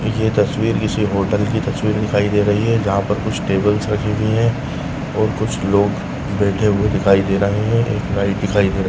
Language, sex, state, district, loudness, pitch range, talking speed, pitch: Hindi, male, Maharashtra, Nagpur, -18 LUFS, 100-110 Hz, 205 wpm, 105 Hz